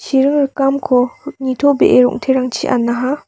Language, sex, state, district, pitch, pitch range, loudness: Garo, female, Meghalaya, West Garo Hills, 265 Hz, 250-285 Hz, -15 LUFS